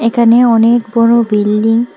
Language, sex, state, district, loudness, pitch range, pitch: Bengali, female, Tripura, West Tripura, -10 LUFS, 225-235 Hz, 230 Hz